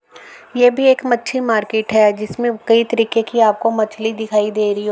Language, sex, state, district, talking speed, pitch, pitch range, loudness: Hindi, female, Uttar Pradesh, Etah, 195 wpm, 225 Hz, 215-240 Hz, -16 LUFS